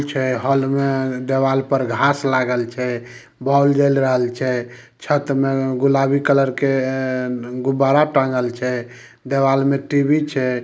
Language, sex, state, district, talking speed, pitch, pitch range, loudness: Maithili, male, Bihar, Samastipur, 130 wpm, 135 Hz, 125-140 Hz, -18 LUFS